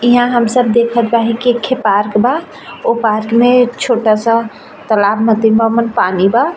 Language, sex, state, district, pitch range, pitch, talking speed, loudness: Bhojpuri, female, Uttar Pradesh, Ghazipur, 220-245 Hz, 235 Hz, 200 wpm, -12 LUFS